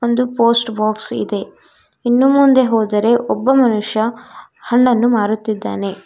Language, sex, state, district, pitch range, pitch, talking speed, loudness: Kannada, female, Karnataka, Koppal, 215-245 Hz, 235 Hz, 110 wpm, -15 LUFS